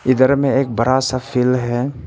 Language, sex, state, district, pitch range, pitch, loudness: Hindi, male, Arunachal Pradesh, Papum Pare, 125-135 Hz, 130 Hz, -17 LUFS